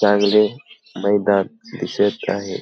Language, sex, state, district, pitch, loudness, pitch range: Marathi, male, Maharashtra, Pune, 100 Hz, -19 LUFS, 100-105 Hz